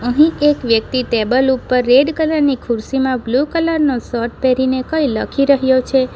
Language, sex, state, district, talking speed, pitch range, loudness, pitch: Gujarati, female, Gujarat, Valsad, 175 wpm, 250-285 Hz, -15 LUFS, 260 Hz